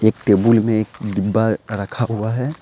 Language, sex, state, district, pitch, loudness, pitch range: Hindi, male, Jharkhand, Deoghar, 110 Hz, -18 LUFS, 105-115 Hz